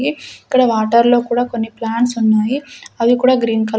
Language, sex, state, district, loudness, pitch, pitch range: Telugu, female, Andhra Pradesh, Sri Satya Sai, -15 LUFS, 235 Hz, 225-250 Hz